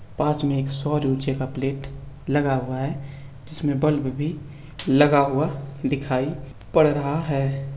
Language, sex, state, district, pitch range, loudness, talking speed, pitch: Hindi, male, Uttar Pradesh, Budaun, 135-145 Hz, -23 LUFS, 145 wpm, 140 Hz